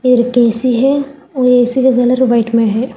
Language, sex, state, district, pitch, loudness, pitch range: Hindi, female, Telangana, Hyderabad, 250 Hz, -12 LUFS, 240-260 Hz